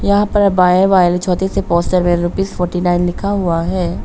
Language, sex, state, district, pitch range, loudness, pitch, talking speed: Hindi, female, Arunachal Pradesh, Papum Pare, 175-195 Hz, -15 LUFS, 180 Hz, 205 wpm